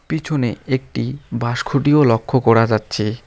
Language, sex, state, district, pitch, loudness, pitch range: Bengali, male, West Bengal, Alipurduar, 120 Hz, -18 LUFS, 115-140 Hz